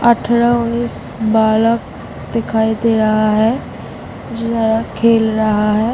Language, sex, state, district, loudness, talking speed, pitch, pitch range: Hindi, female, Bihar, Samastipur, -15 LUFS, 110 wpm, 225 Hz, 220-230 Hz